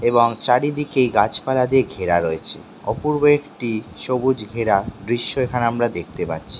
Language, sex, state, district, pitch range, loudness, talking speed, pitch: Bengali, male, West Bengal, Dakshin Dinajpur, 105-130 Hz, -20 LUFS, 135 wpm, 120 Hz